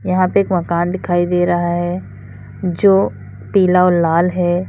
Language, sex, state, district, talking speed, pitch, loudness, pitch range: Hindi, female, Uttar Pradesh, Lalitpur, 165 wpm, 175 Hz, -16 LUFS, 170-180 Hz